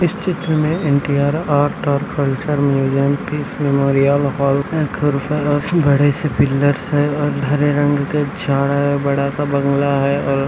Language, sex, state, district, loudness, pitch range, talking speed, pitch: Hindi, male, Andhra Pradesh, Anantapur, -17 LUFS, 140-145 Hz, 135 wpm, 145 Hz